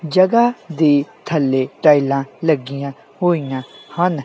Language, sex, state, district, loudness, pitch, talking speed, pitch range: Punjabi, male, Punjab, Kapurthala, -17 LUFS, 150 Hz, 100 wpm, 140-170 Hz